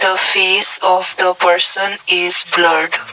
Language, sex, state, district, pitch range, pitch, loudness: English, male, Assam, Kamrup Metropolitan, 175-190 Hz, 185 Hz, -12 LUFS